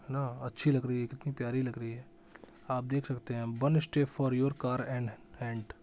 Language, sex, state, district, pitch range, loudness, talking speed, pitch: Hindi, male, Bihar, Saran, 120-140 Hz, -33 LUFS, 225 wpm, 130 Hz